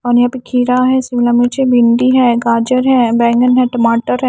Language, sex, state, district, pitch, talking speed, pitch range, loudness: Hindi, female, Haryana, Charkhi Dadri, 245 Hz, 225 wpm, 240-255 Hz, -12 LUFS